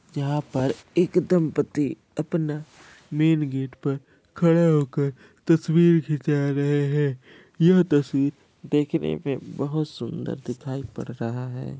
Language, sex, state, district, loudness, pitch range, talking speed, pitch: Hindi, male, Bihar, Kishanganj, -24 LUFS, 135-160 Hz, 120 wpm, 145 Hz